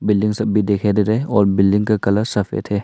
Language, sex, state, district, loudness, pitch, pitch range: Hindi, male, Arunachal Pradesh, Longding, -17 LUFS, 105 Hz, 100-105 Hz